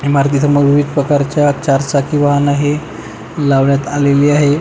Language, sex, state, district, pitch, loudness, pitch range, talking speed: Marathi, male, Maharashtra, Pune, 145 Hz, -13 LUFS, 140-145 Hz, 145 wpm